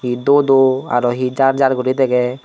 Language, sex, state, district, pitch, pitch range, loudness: Chakma, male, Tripura, Dhalai, 130 Hz, 125-135 Hz, -15 LUFS